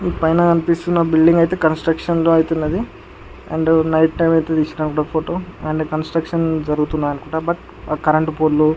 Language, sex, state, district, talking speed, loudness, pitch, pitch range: Telugu, male, Andhra Pradesh, Guntur, 130 wpm, -17 LUFS, 160 Hz, 155-165 Hz